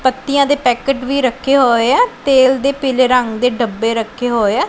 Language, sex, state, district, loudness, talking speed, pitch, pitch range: Punjabi, female, Punjab, Pathankot, -14 LUFS, 205 wpm, 255 Hz, 235-275 Hz